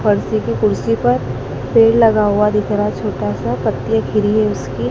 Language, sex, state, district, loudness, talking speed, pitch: Hindi, male, Madhya Pradesh, Dhar, -16 LUFS, 145 wpm, 130 Hz